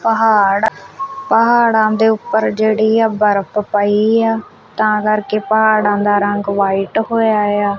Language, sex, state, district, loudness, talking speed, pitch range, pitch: Punjabi, female, Punjab, Kapurthala, -14 LUFS, 130 wpm, 205-220 Hz, 215 Hz